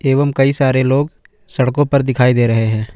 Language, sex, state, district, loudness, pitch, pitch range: Hindi, male, Jharkhand, Ranchi, -15 LUFS, 135 Hz, 125-140 Hz